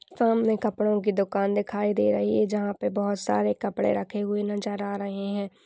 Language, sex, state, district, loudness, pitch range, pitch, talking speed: Hindi, female, Uttar Pradesh, Budaun, -26 LUFS, 195-210 Hz, 205 Hz, 200 wpm